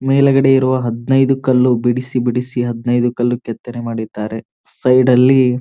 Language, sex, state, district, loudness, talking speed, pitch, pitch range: Kannada, male, Karnataka, Gulbarga, -15 LUFS, 140 wpm, 125 Hz, 120-130 Hz